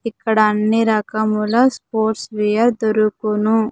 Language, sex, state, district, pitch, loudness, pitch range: Telugu, female, Andhra Pradesh, Sri Satya Sai, 220 Hz, -17 LUFS, 215-225 Hz